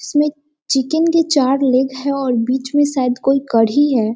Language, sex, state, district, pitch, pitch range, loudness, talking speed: Hindi, female, Bihar, Sitamarhi, 275 Hz, 255-290 Hz, -16 LUFS, 190 wpm